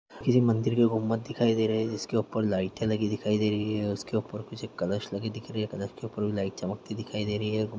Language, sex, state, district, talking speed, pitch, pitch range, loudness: Hindi, male, Bihar, Muzaffarpur, 300 wpm, 110 Hz, 105-110 Hz, -29 LUFS